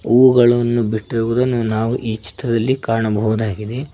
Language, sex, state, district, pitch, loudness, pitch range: Kannada, male, Karnataka, Koppal, 115 Hz, -17 LUFS, 110-125 Hz